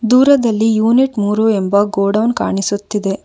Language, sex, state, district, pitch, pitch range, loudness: Kannada, female, Karnataka, Bangalore, 215 Hz, 205-230 Hz, -14 LUFS